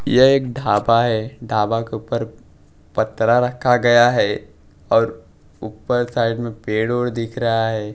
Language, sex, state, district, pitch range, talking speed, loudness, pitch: Hindi, male, Bihar, West Champaran, 110-120 Hz, 150 wpm, -18 LUFS, 115 Hz